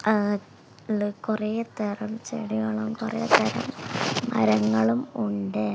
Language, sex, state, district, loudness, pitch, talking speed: Malayalam, female, Kerala, Kasaragod, -26 LUFS, 145 Hz, 85 wpm